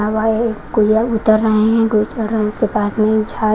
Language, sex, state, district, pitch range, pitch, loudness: Hindi, female, Punjab, Kapurthala, 215-225 Hz, 220 Hz, -16 LUFS